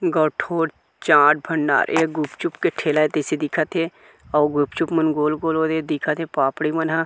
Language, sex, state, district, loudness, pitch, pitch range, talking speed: Chhattisgarhi, male, Chhattisgarh, Kabirdham, -21 LUFS, 155 Hz, 150-165 Hz, 180 wpm